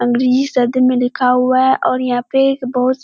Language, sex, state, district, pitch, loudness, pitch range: Hindi, female, Bihar, Kishanganj, 255 Hz, -15 LUFS, 250-260 Hz